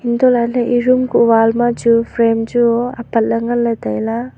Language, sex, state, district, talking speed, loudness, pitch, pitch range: Wancho, female, Arunachal Pradesh, Longding, 205 wpm, -15 LUFS, 235 Hz, 230-240 Hz